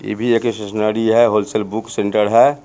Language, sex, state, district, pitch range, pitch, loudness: Hindi, male, Bihar, Muzaffarpur, 105-115 Hz, 110 Hz, -16 LUFS